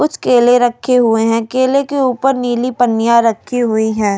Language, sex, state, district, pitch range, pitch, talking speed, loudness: Hindi, female, Delhi, New Delhi, 230-255 Hz, 245 Hz, 185 wpm, -13 LUFS